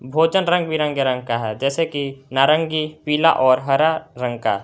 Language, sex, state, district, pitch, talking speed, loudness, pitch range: Hindi, male, Jharkhand, Garhwa, 145 Hz, 170 wpm, -19 LUFS, 130-160 Hz